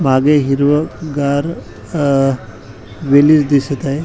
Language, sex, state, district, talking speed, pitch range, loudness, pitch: Marathi, male, Maharashtra, Washim, 90 wpm, 135-150 Hz, -14 LUFS, 140 Hz